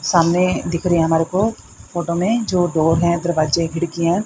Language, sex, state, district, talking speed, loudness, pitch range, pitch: Hindi, female, Haryana, Rohtak, 155 wpm, -18 LUFS, 165-180 Hz, 170 Hz